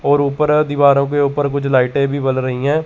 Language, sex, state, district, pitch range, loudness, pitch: Hindi, male, Chandigarh, Chandigarh, 140-145 Hz, -15 LUFS, 140 Hz